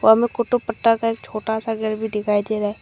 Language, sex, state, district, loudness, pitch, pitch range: Hindi, female, Arunachal Pradesh, Longding, -21 LUFS, 220 Hz, 215-230 Hz